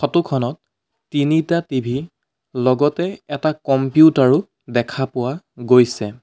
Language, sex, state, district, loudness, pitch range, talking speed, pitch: Assamese, male, Assam, Sonitpur, -18 LUFS, 125-155 Hz, 105 wpm, 135 Hz